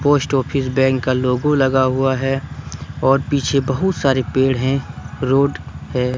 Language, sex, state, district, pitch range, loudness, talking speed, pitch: Hindi, male, Jharkhand, Deoghar, 130-140 Hz, -18 LUFS, 155 wpm, 135 Hz